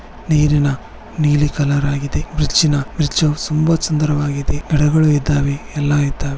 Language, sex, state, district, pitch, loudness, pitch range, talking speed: Kannada, male, Karnataka, Bellary, 150 Hz, -17 LUFS, 145-155 Hz, 105 wpm